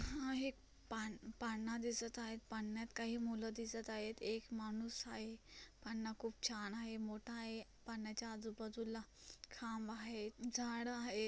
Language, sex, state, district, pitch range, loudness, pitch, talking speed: Marathi, female, Maharashtra, Solapur, 220-230 Hz, -46 LUFS, 225 Hz, 120 wpm